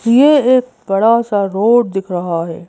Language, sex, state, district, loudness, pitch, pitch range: Hindi, female, Madhya Pradesh, Bhopal, -13 LUFS, 220 Hz, 195-240 Hz